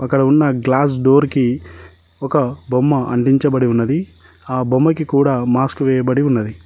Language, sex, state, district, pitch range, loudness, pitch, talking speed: Telugu, male, Telangana, Mahabubabad, 125-140 Hz, -16 LUFS, 130 Hz, 135 wpm